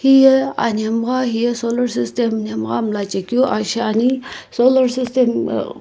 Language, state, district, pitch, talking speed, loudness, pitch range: Sumi, Nagaland, Kohima, 240 Hz, 115 wpm, -17 LUFS, 220-255 Hz